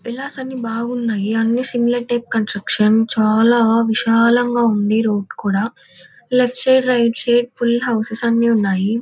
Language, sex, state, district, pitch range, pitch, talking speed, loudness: Telugu, female, Andhra Pradesh, Anantapur, 220-240 Hz, 230 Hz, 135 wpm, -17 LUFS